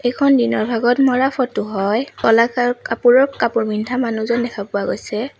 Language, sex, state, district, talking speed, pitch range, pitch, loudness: Assamese, female, Assam, Sonitpur, 165 wpm, 220-250 Hz, 240 Hz, -17 LUFS